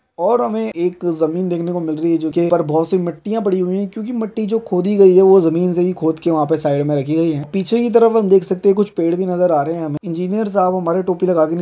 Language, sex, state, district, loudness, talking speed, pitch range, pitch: Hindi, male, Bihar, Darbhanga, -16 LUFS, 300 wpm, 165-195 Hz, 180 Hz